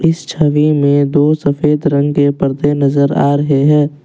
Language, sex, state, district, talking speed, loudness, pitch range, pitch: Hindi, male, Assam, Kamrup Metropolitan, 175 wpm, -13 LUFS, 140-150 Hz, 145 Hz